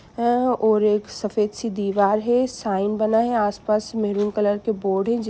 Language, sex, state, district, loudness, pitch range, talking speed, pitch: Hindi, female, Jharkhand, Sahebganj, -21 LUFS, 205-230 Hz, 190 wpm, 215 Hz